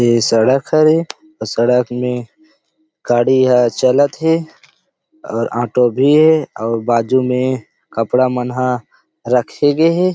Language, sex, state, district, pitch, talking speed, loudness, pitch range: Chhattisgarhi, male, Chhattisgarh, Rajnandgaon, 130 Hz, 140 wpm, -15 LUFS, 120-155 Hz